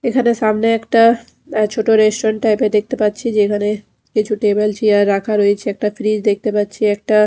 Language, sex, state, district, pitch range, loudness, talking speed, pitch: Bengali, female, Odisha, Khordha, 210-220 Hz, -16 LUFS, 165 wpm, 215 Hz